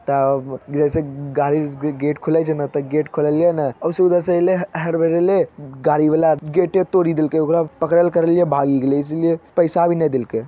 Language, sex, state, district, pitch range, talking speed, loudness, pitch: Magahi, male, Bihar, Jamui, 145-170 Hz, 190 wpm, -18 LUFS, 155 Hz